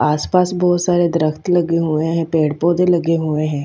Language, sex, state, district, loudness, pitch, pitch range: Hindi, female, Haryana, Charkhi Dadri, -16 LUFS, 165 Hz, 155-175 Hz